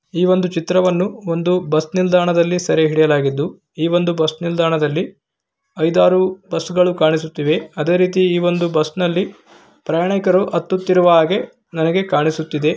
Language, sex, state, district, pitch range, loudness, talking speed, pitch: Kannada, male, Karnataka, Gulbarga, 160-180 Hz, -17 LUFS, 115 wpm, 175 Hz